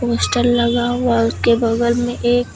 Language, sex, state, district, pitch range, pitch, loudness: Hindi, female, Uttar Pradesh, Lucknow, 235-245 Hz, 240 Hz, -16 LUFS